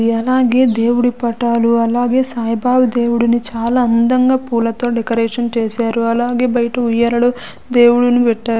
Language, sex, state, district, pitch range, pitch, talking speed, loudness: Telugu, female, Andhra Pradesh, Sri Satya Sai, 230-245 Hz, 240 Hz, 110 wpm, -14 LUFS